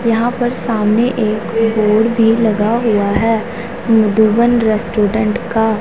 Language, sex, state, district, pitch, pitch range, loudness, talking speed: Hindi, female, Punjab, Pathankot, 225 Hz, 215-235 Hz, -14 LUFS, 135 wpm